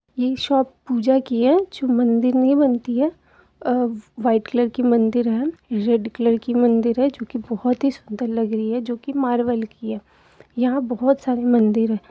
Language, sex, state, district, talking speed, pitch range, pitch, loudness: Hindi, female, Jharkhand, Jamtara, 195 wpm, 230-260 Hz, 245 Hz, -20 LUFS